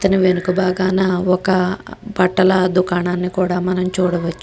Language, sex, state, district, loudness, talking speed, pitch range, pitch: Telugu, female, Andhra Pradesh, Guntur, -17 LUFS, 120 wpm, 180-185 Hz, 185 Hz